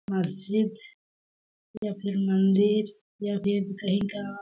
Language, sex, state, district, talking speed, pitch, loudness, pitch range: Hindi, female, Chhattisgarh, Balrampur, 120 wpm, 200 Hz, -27 LUFS, 195-210 Hz